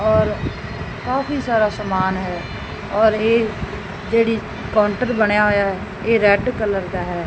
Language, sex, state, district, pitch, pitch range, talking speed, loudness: Punjabi, male, Punjab, Fazilka, 210 Hz, 190-225 Hz, 140 wpm, -19 LUFS